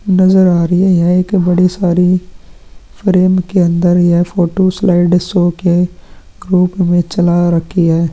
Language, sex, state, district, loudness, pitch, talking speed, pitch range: Hindi, male, Chhattisgarh, Korba, -12 LUFS, 180 Hz, 140 wpm, 175-185 Hz